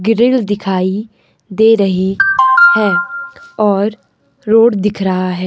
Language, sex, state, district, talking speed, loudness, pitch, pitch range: Hindi, male, Himachal Pradesh, Shimla, 110 wpm, -12 LUFS, 215 Hz, 195-250 Hz